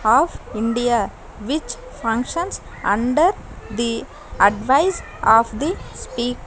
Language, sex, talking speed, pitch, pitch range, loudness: English, female, 100 wpm, 240 Hz, 225-295 Hz, -20 LUFS